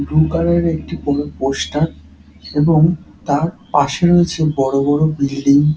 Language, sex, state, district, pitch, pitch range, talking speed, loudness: Bengali, male, West Bengal, Dakshin Dinajpur, 150 Hz, 140-160 Hz, 135 wpm, -16 LUFS